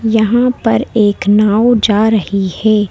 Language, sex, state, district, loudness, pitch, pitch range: Hindi, female, Madhya Pradesh, Bhopal, -12 LUFS, 215 Hz, 205-230 Hz